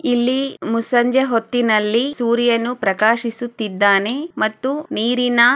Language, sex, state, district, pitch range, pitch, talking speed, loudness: Kannada, female, Karnataka, Chamarajanagar, 225-250 Hz, 240 Hz, 75 wpm, -18 LUFS